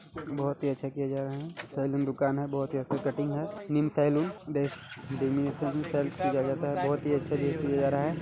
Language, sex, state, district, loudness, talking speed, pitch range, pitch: Hindi, male, Chhattisgarh, Balrampur, -30 LUFS, 210 wpm, 140-150 Hz, 140 Hz